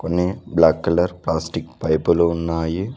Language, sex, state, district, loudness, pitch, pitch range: Telugu, male, Telangana, Mahabubabad, -20 LUFS, 85 Hz, 80-90 Hz